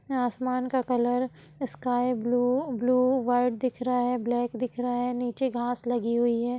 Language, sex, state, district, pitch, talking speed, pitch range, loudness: Hindi, female, Bihar, Sitamarhi, 245 Hz, 180 wpm, 245-255 Hz, -27 LUFS